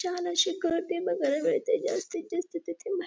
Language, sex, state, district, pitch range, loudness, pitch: Marathi, female, Maharashtra, Dhule, 350-415 Hz, -29 LUFS, 365 Hz